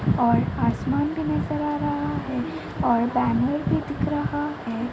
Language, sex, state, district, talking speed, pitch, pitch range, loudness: Hindi, female, Uttar Pradesh, Ghazipur, 160 wpm, 145 Hz, 145-155 Hz, -24 LUFS